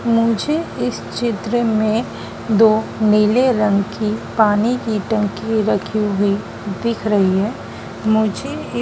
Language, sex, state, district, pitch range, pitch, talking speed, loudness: Hindi, female, Madhya Pradesh, Dhar, 210-230 Hz, 215 Hz, 120 wpm, -18 LUFS